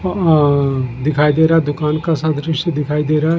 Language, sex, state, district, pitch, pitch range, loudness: Hindi, male, Uttarakhand, Tehri Garhwal, 155 Hz, 150-160 Hz, -16 LUFS